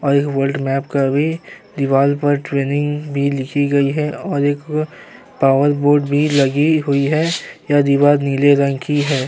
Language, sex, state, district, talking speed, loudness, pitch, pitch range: Hindi, male, Uttar Pradesh, Jyotiba Phule Nagar, 175 wpm, -16 LUFS, 145 Hz, 140-145 Hz